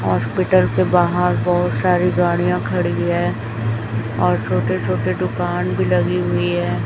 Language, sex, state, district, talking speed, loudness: Hindi, female, Chhattisgarh, Raipur, 140 wpm, -18 LUFS